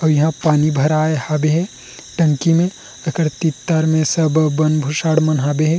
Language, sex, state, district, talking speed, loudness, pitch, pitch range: Chhattisgarhi, male, Chhattisgarh, Rajnandgaon, 195 wpm, -17 LUFS, 155 Hz, 150-160 Hz